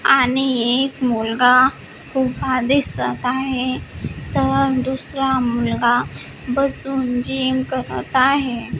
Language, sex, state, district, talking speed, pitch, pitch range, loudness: Marathi, female, Maharashtra, Gondia, 90 wpm, 260 Hz, 245-270 Hz, -18 LUFS